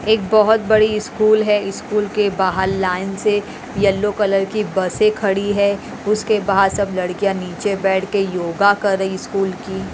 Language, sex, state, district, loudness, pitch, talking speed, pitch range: Hindi, female, Haryana, Rohtak, -18 LUFS, 200 Hz, 170 wpm, 190-210 Hz